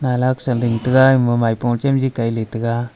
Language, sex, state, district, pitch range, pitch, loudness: Wancho, male, Arunachal Pradesh, Longding, 115-130 Hz, 120 Hz, -17 LUFS